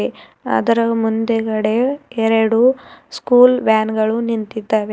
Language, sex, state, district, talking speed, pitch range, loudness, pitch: Kannada, female, Karnataka, Bidar, 85 wpm, 220-235 Hz, -16 LUFS, 225 Hz